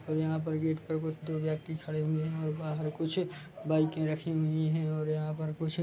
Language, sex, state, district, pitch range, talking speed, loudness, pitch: Hindi, male, Chhattisgarh, Bilaspur, 155-160 Hz, 225 wpm, -33 LUFS, 155 Hz